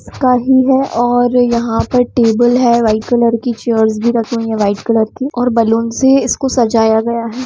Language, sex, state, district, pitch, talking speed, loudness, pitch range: Hindi, female, Jharkhand, Jamtara, 235 Hz, 215 wpm, -13 LUFS, 225-250 Hz